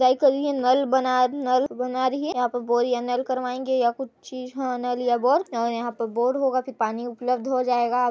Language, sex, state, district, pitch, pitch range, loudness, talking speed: Hindi, female, Chhattisgarh, Sarguja, 250 Hz, 245-260 Hz, -24 LUFS, 245 wpm